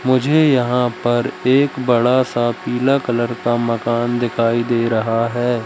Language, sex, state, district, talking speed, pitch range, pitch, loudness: Hindi, male, Madhya Pradesh, Katni, 150 wpm, 120-125 Hz, 120 Hz, -17 LUFS